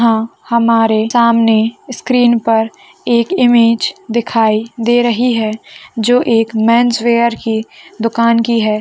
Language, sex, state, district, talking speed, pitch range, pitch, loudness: Hindi, female, Rajasthan, Churu, 145 wpm, 225-235 Hz, 230 Hz, -13 LUFS